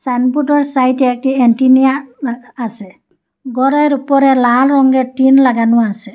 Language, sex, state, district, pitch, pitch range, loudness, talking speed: Bengali, female, Assam, Hailakandi, 260 Hz, 245-270 Hz, -12 LUFS, 125 wpm